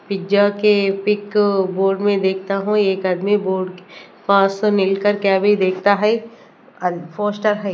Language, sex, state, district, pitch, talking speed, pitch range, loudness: Hindi, female, Chandigarh, Chandigarh, 200 Hz, 145 wpm, 190-205 Hz, -18 LUFS